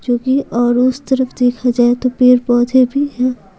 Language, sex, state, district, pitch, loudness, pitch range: Hindi, female, Bihar, Patna, 250 Hz, -14 LUFS, 240-260 Hz